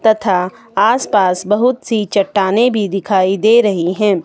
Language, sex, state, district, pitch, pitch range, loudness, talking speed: Hindi, female, Himachal Pradesh, Shimla, 205 Hz, 190-225 Hz, -14 LUFS, 155 wpm